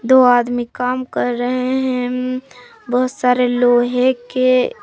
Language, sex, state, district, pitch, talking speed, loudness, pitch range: Hindi, female, Jharkhand, Palamu, 250 Hz, 125 wpm, -17 LUFS, 245-255 Hz